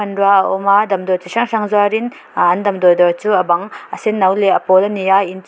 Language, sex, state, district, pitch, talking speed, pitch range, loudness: Mizo, female, Mizoram, Aizawl, 195 Hz, 265 wpm, 185-205 Hz, -14 LUFS